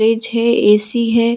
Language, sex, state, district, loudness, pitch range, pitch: Hindi, female, Jharkhand, Sahebganj, -14 LUFS, 225-235 Hz, 230 Hz